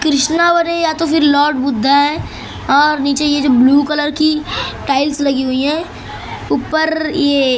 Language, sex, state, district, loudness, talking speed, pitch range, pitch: Hindi, male, Maharashtra, Mumbai Suburban, -14 LUFS, 175 wpm, 280-315 Hz, 290 Hz